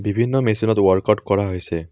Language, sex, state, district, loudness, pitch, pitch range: Assamese, male, Assam, Kamrup Metropolitan, -19 LUFS, 105 Hz, 95-110 Hz